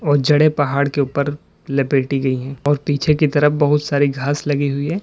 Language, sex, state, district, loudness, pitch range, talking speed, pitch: Hindi, male, Uttar Pradesh, Lalitpur, -18 LUFS, 140-150 Hz, 215 wpm, 145 Hz